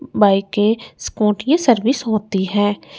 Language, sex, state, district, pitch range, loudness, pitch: Hindi, female, Chandigarh, Chandigarh, 205-240 Hz, -17 LUFS, 215 Hz